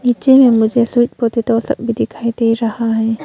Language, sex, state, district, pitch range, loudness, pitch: Hindi, female, Arunachal Pradesh, Longding, 230-240 Hz, -14 LUFS, 230 Hz